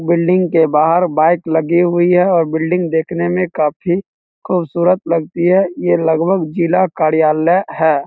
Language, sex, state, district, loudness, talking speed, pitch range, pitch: Hindi, male, Bihar, East Champaran, -14 LUFS, 150 wpm, 160-180 Hz, 170 Hz